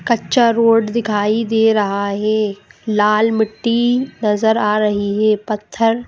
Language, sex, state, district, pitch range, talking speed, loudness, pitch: Hindi, female, Madhya Pradesh, Bhopal, 210-230 Hz, 140 wpm, -16 LUFS, 215 Hz